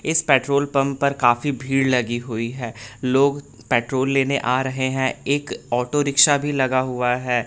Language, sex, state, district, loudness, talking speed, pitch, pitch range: Hindi, male, Bihar, West Champaran, -20 LUFS, 175 wpm, 130 Hz, 125-140 Hz